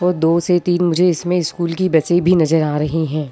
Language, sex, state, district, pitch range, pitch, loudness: Hindi, female, Uttar Pradesh, Jyotiba Phule Nagar, 160-180 Hz, 170 Hz, -16 LUFS